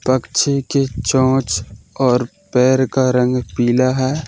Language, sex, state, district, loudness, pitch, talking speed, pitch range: Hindi, male, Jharkhand, Deoghar, -16 LUFS, 130 Hz, 125 wpm, 125-130 Hz